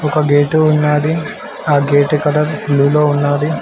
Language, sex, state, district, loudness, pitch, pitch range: Telugu, male, Telangana, Mahabubabad, -14 LUFS, 150 Hz, 145-155 Hz